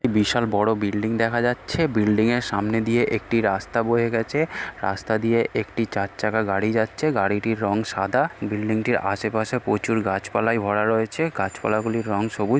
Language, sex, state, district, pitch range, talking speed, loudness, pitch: Bengali, female, West Bengal, North 24 Parganas, 105-115 Hz, 160 wpm, -23 LUFS, 110 Hz